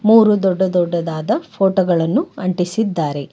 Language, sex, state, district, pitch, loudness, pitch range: Kannada, female, Karnataka, Bangalore, 190 Hz, -17 LUFS, 170-220 Hz